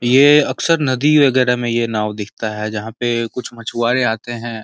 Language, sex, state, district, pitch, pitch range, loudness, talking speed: Hindi, male, Uttar Pradesh, Gorakhpur, 120 Hz, 110-130 Hz, -17 LUFS, 195 wpm